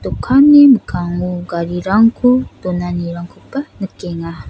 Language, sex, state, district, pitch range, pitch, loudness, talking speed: Garo, female, Meghalaya, South Garo Hills, 175-250 Hz, 180 Hz, -14 LUFS, 65 wpm